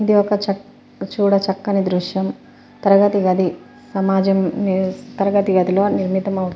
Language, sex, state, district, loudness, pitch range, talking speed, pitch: Telugu, female, Telangana, Nalgonda, -18 LUFS, 190-205 Hz, 120 wpm, 195 Hz